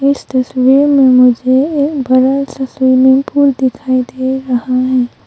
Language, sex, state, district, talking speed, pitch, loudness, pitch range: Hindi, female, Arunachal Pradesh, Longding, 150 wpm, 260 Hz, -11 LUFS, 255-275 Hz